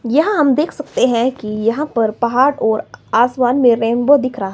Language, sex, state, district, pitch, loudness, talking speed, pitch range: Hindi, female, Himachal Pradesh, Shimla, 245 Hz, -15 LUFS, 200 wpm, 230-285 Hz